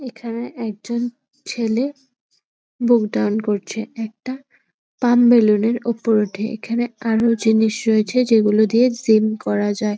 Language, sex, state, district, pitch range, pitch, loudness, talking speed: Bengali, female, West Bengal, Purulia, 220-245 Hz, 230 Hz, -19 LUFS, 120 wpm